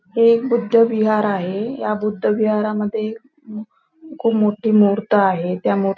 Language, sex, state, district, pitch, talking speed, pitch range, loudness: Marathi, female, Maharashtra, Nagpur, 215 Hz, 140 wpm, 210-230 Hz, -18 LUFS